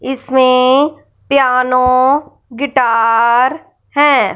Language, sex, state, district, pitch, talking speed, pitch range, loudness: Hindi, female, Punjab, Fazilka, 260 Hz, 55 wpm, 255-280 Hz, -12 LUFS